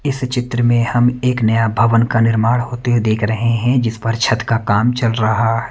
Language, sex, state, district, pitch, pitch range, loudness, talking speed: Hindi, male, Haryana, Rohtak, 115 Hz, 115-120 Hz, -16 LUFS, 230 wpm